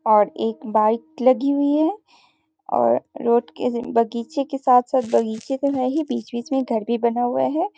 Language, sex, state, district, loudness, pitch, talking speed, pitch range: Hindi, female, Bihar, Sitamarhi, -21 LUFS, 250 Hz, 175 wpm, 235-280 Hz